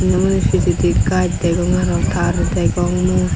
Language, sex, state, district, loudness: Chakma, female, Tripura, Unakoti, -16 LUFS